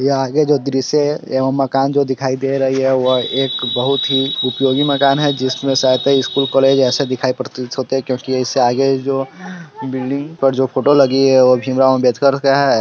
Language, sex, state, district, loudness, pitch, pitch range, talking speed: Hindi, male, Bihar, Sitamarhi, -15 LUFS, 135 Hz, 130-140 Hz, 185 wpm